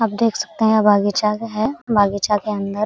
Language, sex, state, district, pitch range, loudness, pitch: Hindi, female, Jharkhand, Sahebganj, 205-220 Hz, -18 LUFS, 210 Hz